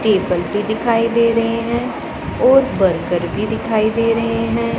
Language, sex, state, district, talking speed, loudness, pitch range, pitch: Hindi, female, Punjab, Pathankot, 165 wpm, -17 LUFS, 210-230 Hz, 230 Hz